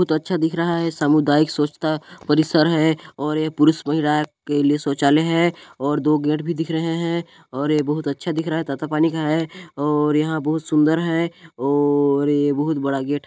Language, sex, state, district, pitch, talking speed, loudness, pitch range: Hindi, male, Chhattisgarh, Balrampur, 155 Hz, 210 wpm, -20 LUFS, 145-165 Hz